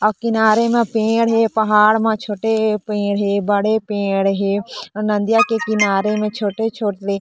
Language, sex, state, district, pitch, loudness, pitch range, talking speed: Chhattisgarhi, female, Chhattisgarh, Korba, 215 Hz, -17 LUFS, 205-225 Hz, 160 wpm